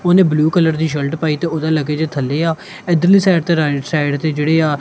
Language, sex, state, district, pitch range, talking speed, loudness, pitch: Punjabi, male, Punjab, Kapurthala, 150-170 Hz, 235 wpm, -16 LUFS, 160 Hz